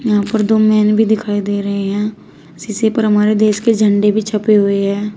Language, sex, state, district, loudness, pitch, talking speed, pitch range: Hindi, female, Uttar Pradesh, Shamli, -14 LUFS, 210 Hz, 220 wpm, 205-215 Hz